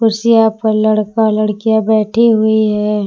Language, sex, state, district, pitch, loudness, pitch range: Hindi, female, Jharkhand, Palamu, 220 Hz, -13 LUFS, 215-225 Hz